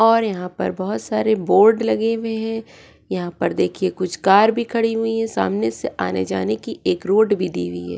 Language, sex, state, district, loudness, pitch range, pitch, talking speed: Hindi, female, Goa, North and South Goa, -20 LUFS, 180-225 Hz, 205 Hz, 220 wpm